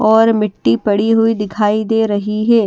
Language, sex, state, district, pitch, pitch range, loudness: Hindi, female, Haryana, Charkhi Dadri, 215 Hz, 210-225 Hz, -14 LUFS